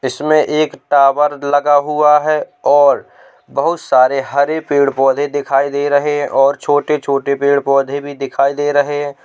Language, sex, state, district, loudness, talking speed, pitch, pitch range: Hindi, male, Uttar Pradesh, Hamirpur, -14 LUFS, 160 wpm, 145 Hz, 140-145 Hz